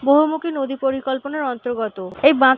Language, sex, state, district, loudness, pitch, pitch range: Bengali, female, West Bengal, North 24 Parganas, -20 LUFS, 270 Hz, 250-285 Hz